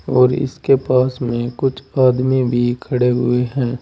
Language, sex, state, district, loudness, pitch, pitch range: Hindi, male, Uttar Pradesh, Saharanpur, -17 LUFS, 125 Hz, 125-130 Hz